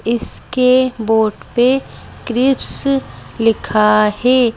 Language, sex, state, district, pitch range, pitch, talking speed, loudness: Hindi, female, Madhya Pradesh, Bhopal, 220-255 Hz, 240 Hz, 80 wpm, -15 LUFS